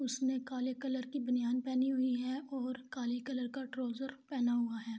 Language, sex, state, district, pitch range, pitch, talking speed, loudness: Urdu, female, Andhra Pradesh, Anantapur, 245-265 Hz, 255 Hz, 190 wpm, -37 LUFS